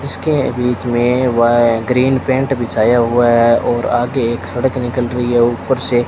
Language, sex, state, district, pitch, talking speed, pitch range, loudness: Hindi, male, Rajasthan, Bikaner, 120 Hz, 180 wpm, 120-130 Hz, -14 LUFS